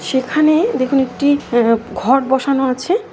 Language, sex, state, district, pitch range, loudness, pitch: Bengali, female, West Bengal, Kolkata, 255-285 Hz, -15 LUFS, 265 Hz